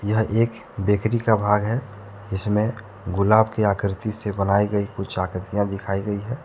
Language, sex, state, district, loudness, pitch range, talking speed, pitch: Hindi, male, Jharkhand, Deoghar, -23 LUFS, 100-110 Hz, 165 wpm, 105 Hz